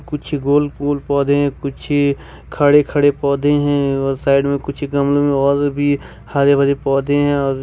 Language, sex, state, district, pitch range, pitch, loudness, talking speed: Hindi, male, Jharkhand, Ranchi, 140-145 Hz, 140 Hz, -16 LUFS, 175 wpm